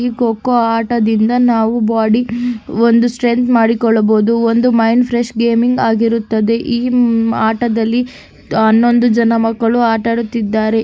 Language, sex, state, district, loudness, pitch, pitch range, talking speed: Kannada, female, Karnataka, Gulbarga, -13 LUFS, 230 Hz, 225-240 Hz, 105 wpm